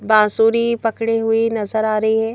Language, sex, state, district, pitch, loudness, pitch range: Hindi, female, Madhya Pradesh, Bhopal, 225 Hz, -17 LUFS, 220-225 Hz